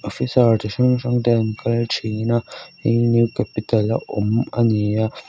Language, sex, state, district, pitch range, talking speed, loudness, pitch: Mizo, female, Mizoram, Aizawl, 110-120 Hz, 205 wpm, -19 LUFS, 115 Hz